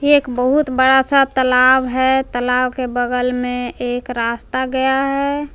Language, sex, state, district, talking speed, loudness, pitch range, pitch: Hindi, female, Jharkhand, Palamu, 150 wpm, -16 LUFS, 250-265 Hz, 260 Hz